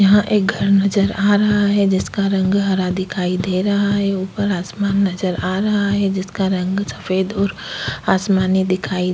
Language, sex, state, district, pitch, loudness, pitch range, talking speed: Hindi, female, Goa, North and South Goa, 195 Hz, -18 LUFS, 185-200 Hz, 175 wpm